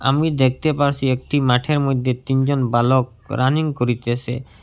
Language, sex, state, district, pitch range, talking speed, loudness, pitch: Bengali, male, Assam, Hailakandi, 125-140 Hz, 145 wpm, -19 LUFS, 130 Hz